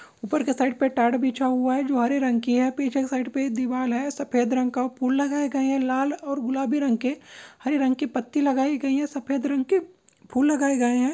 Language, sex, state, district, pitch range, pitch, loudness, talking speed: Maithili, female, Bihar, Begusarai, 255-280 Hz, 270 Hz, -24 LUFS, 250 wpm